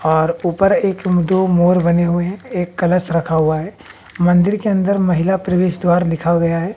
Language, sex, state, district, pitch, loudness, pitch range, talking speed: Hindi, male, Bihar, West Champaran, 175 Hz, -16 LUFS, 170-185 Hz, 195 wpm